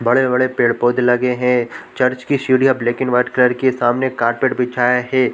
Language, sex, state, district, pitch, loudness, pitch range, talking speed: Hindi, male, Chhattisgarh, Korba, 125 Hz, -16 LUFS, 125-130 Hz, 200 wpm